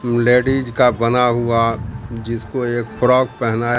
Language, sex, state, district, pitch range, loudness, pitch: Hindi, male, Bihar, Katihar, 115-125 Hz, -17 LUFS, 120 Hz